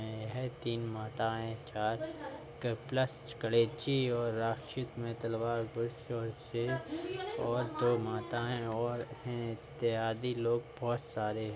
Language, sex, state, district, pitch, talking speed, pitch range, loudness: Hindi, male, Uttar Pradesh, Muzaffarnagar, 120 Hz, 110 wpm, 115-125 Hz, -36 LUFS